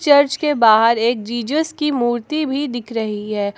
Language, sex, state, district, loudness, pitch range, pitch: Hindi, female, Jharkhand, Palamu, -17 LUFS, 225-290 Hz, 240 Hz